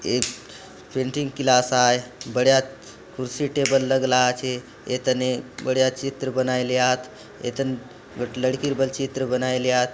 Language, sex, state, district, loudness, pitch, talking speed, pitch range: Halbi, male, Chhattisgarh, Bastar, -23 LUFS, 130 Hz, 135 wpm, 125-135 Hz